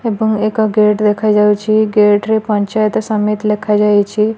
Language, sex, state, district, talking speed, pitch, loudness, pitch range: Odia, female, Odisha, Malkangiri, 125 wpm, 215 Hz, -13 LUFS, 210-220 Hz